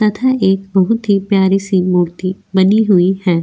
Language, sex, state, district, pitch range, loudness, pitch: Hindi, female, Goa, North and South Goa, 185-205 Hz, -14 LUFS, 195 Hz